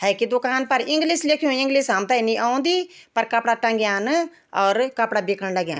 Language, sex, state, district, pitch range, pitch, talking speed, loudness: Garhwali, female, Uttarakhand, Tehri Garhwal, 210-280 Hz, 235 Hz, 165 wpm, -21 LUFS